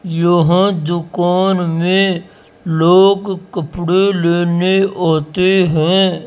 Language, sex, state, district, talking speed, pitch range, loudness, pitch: Hindi, male, Rajasthan, Jaipur, 75 wpm, 170-190 Hz, -14 LUFS, 180 Hz